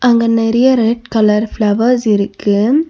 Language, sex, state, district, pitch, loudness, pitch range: Tamil, female, Tamil Nadu, Nilgiris, 225 Hz, -13 LUFS, 210-245 Hz